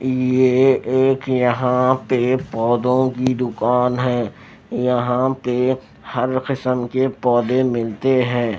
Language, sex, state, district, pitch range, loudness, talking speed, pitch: Hindi, male, Maharashtra, Mumbai Suburban, 125-130 Hz, -18 LUFS, 110 wpm, 125 Hz